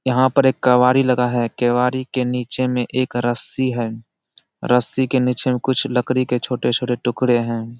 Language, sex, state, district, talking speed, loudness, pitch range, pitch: Hindi, male, Bihar, Araria, 175 wpm, -18 LUFS, 120-130 Hz, 125 Hz